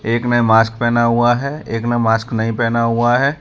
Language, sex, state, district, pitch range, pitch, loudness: Hindi, male, Gujarat, Valsad, 115-120 Hz, 120 Hz, -16 LUFS